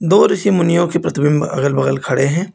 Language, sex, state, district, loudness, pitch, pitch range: Hindi, male, Uttar Pradesh, Lucknow, -15 LUFS, 155 Hz, 140-175 Hz